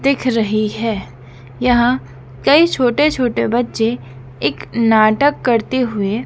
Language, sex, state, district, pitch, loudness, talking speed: Hindi, female, Madhya Pradesh, Dhar, 225 Hz, -16 LUFS, 115 wpm